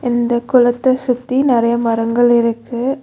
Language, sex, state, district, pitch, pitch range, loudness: Tamil, female, Tamil Nadu, Nilgiris, 240 Hz, 235-255 Hz, -15 LUFS